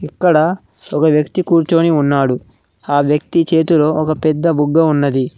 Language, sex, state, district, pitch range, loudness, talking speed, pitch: Telugu, male, Telangana, Mahabubabad, 145-165 Hz, -14 LUFS, 135 wpm, 155 Hz